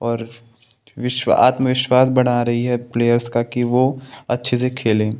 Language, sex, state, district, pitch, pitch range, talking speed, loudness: Hindi, male, Maharashtra, Chandrapur, 120 Hz, 120-125 Hz, 150 wpm, -18 LUFS